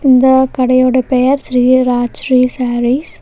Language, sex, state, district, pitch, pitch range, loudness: Tamil, female, Tamil Nadu, Nilgiris, 255 Hz, 250-260 Hz, -12 LUFS